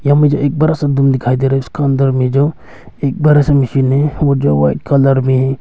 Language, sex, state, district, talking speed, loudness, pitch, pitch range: Hindi, male, Arunachal Pradesh, Longding, 225 wpm, -13 LUFS, 140 Hz, 135-145 Hz